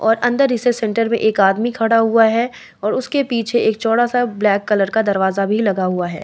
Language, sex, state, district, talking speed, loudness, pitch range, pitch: Hindi, female, Bihar, Vaishali, 220 wpm, -17 LUFS, 205-240 Hz, 225 Hz